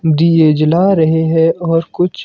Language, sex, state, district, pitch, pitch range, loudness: Hindi, male, Himachal Pradesh, Shimla, 165 Hz, 160-170 Hz, -12 LUFS